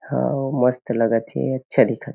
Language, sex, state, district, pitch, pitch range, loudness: Chhattisgarhi, male, Chhattisgarh, Kabirdham, 115 Hz, 115-125 Hz, -21 LUFS